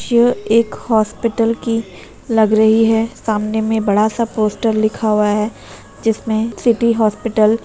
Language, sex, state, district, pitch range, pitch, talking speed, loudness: Hindi, female, Uttar Pradesh, Etah, 215-230 Hz, 220 Hz, 150 wpm, -16 LUFS